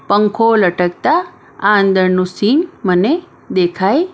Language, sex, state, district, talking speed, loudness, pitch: Gujarati, female, Maharashtra, Mumbai Suburban, 100 wpm, -14 LUFS, 205 Hz